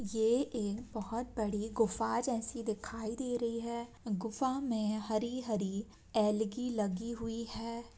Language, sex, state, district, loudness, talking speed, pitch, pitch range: Hindi, male, Bihar, Gaya, -36 LUFS, 130 wpm, 225 Hz, 215-235 Hz